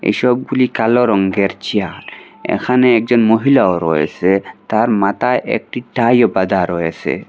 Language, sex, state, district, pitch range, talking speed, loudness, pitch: Bengali, male, Assam, Hailakandi, 95-125 Hz, 115 wpm, -15 LUFS, 110 Hz